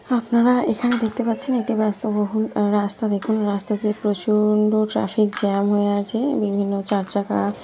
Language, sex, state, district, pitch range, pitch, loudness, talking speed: Bengali, female, West Bengal, North 24 Parganas, 205-225 Hz, 210 Hz, -21 LUFS, 150 wpm